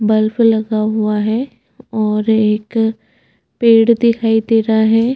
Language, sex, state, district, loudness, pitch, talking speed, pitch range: Hindi, female, Chhattisgarh, Bastar, -14 LUFS, 220 Hz, 130 wpm, 215-230 Hz